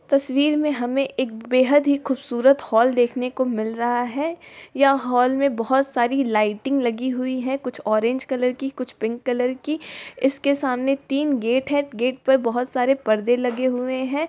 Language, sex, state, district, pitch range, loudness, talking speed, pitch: Hindi, female, Bihar, East Champaran, 245-275 Hz, -21 LUFS, 180 wpm, 255 Hz